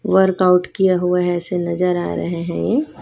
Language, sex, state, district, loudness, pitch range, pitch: Hindi, female, Chhattisgarh, Raipur, -18 LUFS, 175-190 Hz, 180 Hz